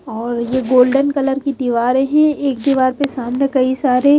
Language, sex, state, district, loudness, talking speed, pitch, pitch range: Hindi, female, Haryana, Charkhi Dadri, -16 LUFS, 185 wpm, 265 Hz, 250-275 Hz